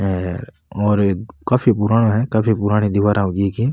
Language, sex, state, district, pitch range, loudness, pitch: Rajasthani, male, Rajasthan, Nagaur, 100-110 Hz, -18 LUFS, 105 Hz